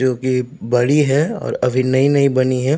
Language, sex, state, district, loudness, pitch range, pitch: Hindi, male, Uttar Pradesh, Jyotiba Phule Nagar, -16 LUFS, 125-140 Hz, 130 Hz